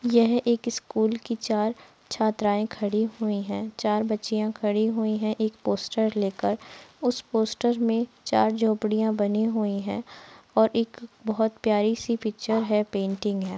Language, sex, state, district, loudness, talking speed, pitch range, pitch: Hindi, female, Bihar, Araria, -26 LUFS, 150 wpm, 210-230 Hz, 220 Hz